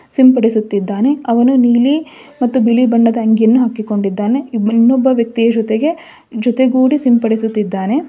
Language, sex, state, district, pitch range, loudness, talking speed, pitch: Kannada, female, Karnataka, Dharwad, 225-260 Hz, -13 LUFS, 95 wpm, 235 Hz